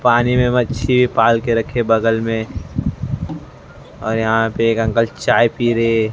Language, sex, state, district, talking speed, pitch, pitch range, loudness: Hindi, male, Maharashtra, Mumbai Suburban, 155 wpm, 115 Hz, 115-120 Hz, -17 LUFS